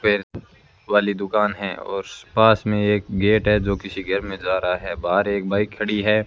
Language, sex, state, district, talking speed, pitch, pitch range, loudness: Hindi, male, Rajasthan, Bikaner, 210 wpm, 100 Hz, 100-105 Hz, -21 LUFS